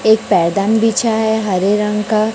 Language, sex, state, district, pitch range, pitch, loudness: Hindi, female, Chhattisgarh, Raipur, 205-220 Hz, 215 Hz, -14 LUFS